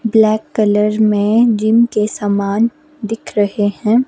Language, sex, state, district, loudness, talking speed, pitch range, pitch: Hindi, female, Himachal Pradesh, Shimla, -15 LUFS, 135 wpm, 210-225 Hz, 215 Hz